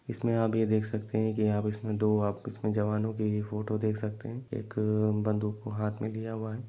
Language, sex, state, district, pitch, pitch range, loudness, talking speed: Hindi, male, Jharkhand, Sahebganj, 110 Hz, 105-110 Hz, -31 LUFS, 180 wpm